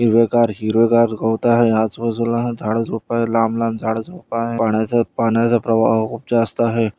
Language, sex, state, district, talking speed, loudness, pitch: Marathi, male, Maharashtra, Nagpur, 120 wpm, -18 LUFS, 115 Hz